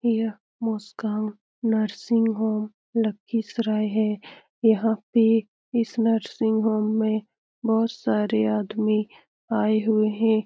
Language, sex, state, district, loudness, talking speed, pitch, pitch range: Hindi, female, Bihar, Lakhisarai, -24 LUFS, 110 wpm, 220 Hz, 215-225 Hz